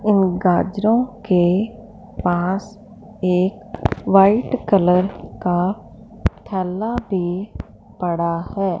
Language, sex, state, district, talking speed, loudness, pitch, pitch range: Hindi, female, Punjab, Fazilka, 80 wpm, -19 LUFS, 195 Hz, 180-215 Hz